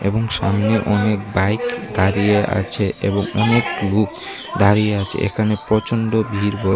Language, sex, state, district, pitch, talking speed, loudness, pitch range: Bengali, male, Tripura, West Tripura, 105 Hz, 135 wpm, -18 LUFS, 100-110 Hz